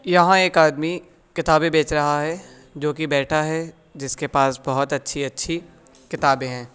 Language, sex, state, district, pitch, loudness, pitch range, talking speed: Hindi, male, Uttar Pradesh, Budaun, 150 Hz, -20 LUFS, 140-165 Hz, 140 wpm